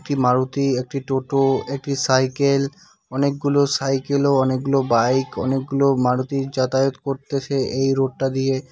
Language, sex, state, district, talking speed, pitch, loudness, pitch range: Bengali, male, West Bengal, Cooch Behar, 125 wpm, 135 Hz, -20 LUFS, 130-140 Hz